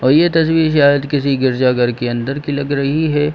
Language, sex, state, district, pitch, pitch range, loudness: Hindi, male, Jharkhand, Sahebganj, 140 Hz, 130-150 Hz, -15 LUFS